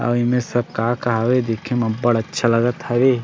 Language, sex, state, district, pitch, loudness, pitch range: Chhattisgarhi, male, Chhattisgarh, Sarguja, 120 Hz, -19 LUFS, 115-125 Hz